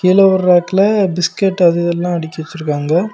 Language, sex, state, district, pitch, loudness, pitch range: Tamil, male, Tamil Nadu, Kanyakumari, 175 Hz, -14 LUFS, 170-190 Hz